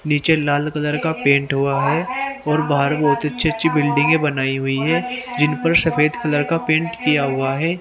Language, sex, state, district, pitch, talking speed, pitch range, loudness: Hindi, male, Haryana, Rohtak, 150 Hz, 190 wpm, 140-165 Hz, -18 LUFS